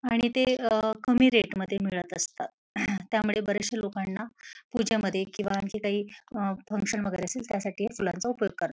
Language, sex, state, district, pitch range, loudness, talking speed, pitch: Marathi, female, Maharashtra, Pune, 195-225 Hz, -29 LUFS, 165 wpm, 210 Hz